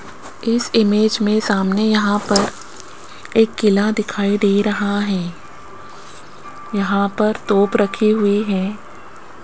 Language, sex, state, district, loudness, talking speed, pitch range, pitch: Hindi, female, Rajasthan, Jaipur, -17 LUFS, 115 wpm, 200-215 Hz, 205 Hz